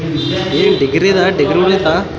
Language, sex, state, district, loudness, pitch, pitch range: Kannada, male, Karnataka, Raichur, -13 LUFS, 185 Hz, 160-195 Hz